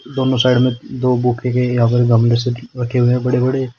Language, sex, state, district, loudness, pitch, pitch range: Hindi, male, Uttar Pradesh, Shamli, -16 LUFS, 125 Hz, 120-125 Hz